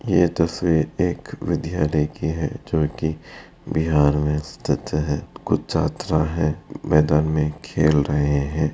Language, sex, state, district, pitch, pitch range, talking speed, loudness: Hindi, male, Bihar, Bhagalpur, 75 Hz, 75-80 Hz, 135 wpm, -22 LUFS